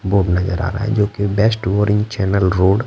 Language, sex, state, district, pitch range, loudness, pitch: Hindi, male, Bihar, Patna, 95-105 Hz, -17 LUFS, 100 Hz